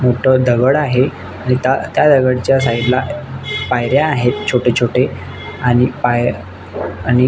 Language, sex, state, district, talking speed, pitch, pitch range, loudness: Marathi, male, Maharashtra, Nagpur, 130 wpm, 125 Hz, 120-130 Hz, -15 LUFS